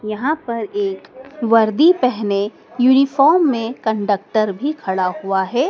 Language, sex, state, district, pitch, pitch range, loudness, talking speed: Hindi, female, Madhya Pradesh, Dhar, 230 Hz, 205-265 Hz, -17 LUFS, 125 wpm